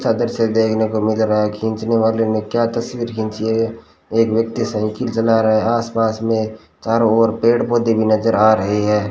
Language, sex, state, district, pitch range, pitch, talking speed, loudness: Hindi, male, Rajasthan, Bikaner, 110-115 Hz, 110 Hz, 195 wpm, -17 LUFS